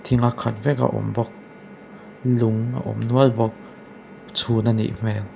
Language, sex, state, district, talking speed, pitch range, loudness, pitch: Mizo, male, Mizoram, Aizawl, 180 wpm, 110-135 Hz, -22 LUFS, 120 Hz